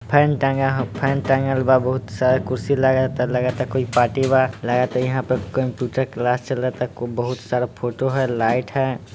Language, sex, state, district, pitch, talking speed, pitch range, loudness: Bhojpuri, male, Bihar, Sitamarhi, 130 Hz, 145 wpm, 125-130 Hz, -20 LUFS